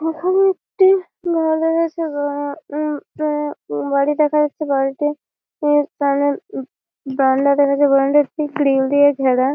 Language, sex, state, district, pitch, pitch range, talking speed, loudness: Bengali, female, West Bengal, Malda, 295 Hz, 280-315 Hz, 80 wpm, -18 LUFS